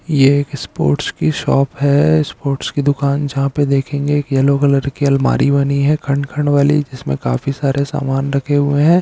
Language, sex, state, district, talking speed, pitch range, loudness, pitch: Hindi, male, Bihar, Araria, 195 wpm, 140-145 Hz, -16 LUFS, 140 Hz